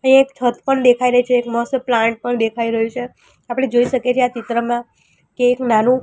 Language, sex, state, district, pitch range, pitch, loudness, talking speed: Gujarati, female, Gujarat, Gandhinagar, 235-250 Hz, 245 Hz, -17 LUFS, 240 wpm